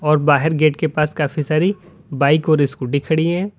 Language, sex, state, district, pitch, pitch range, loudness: Hindi, male, Uttar Pradesh, Lalitpur, 155 Hz, 150-160 Hz, -17 LUFS